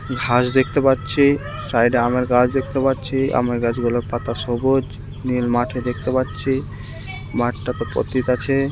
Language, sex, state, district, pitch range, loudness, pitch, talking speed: Bengali, male, West Bengal, Malda, 120-130 Hz, -20 LUFS, 125 Hz, 145 wpm